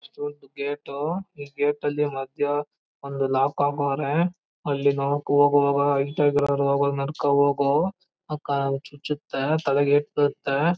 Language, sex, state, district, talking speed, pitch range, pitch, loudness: Kannada, male, Karnataka, Chamarajanagar, 125 wpm, 140-150 Hz, 145 Hz, -24 LUFS